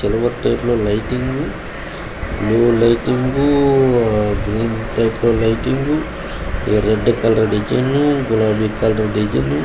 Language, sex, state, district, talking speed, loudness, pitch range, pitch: Telugu, male, Andhra Pradesh, Visakhapatnam, 75 wpm, -17 LUFS, 105-125 Hz, 115 Hz